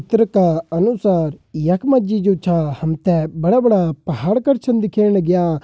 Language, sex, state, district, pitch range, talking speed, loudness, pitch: Garhwali, male, Uttarakhand, Uttarkashi, 165-215 Hz, 150 wpm, -17 LUFS, 185 Hz